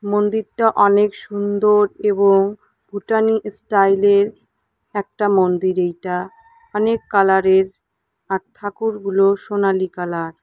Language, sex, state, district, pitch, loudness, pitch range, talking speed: Bengali, female, West Bengal, Cooch Behar, 200 Hz, -18 LUFS, 190-210 Hz, 100 wpm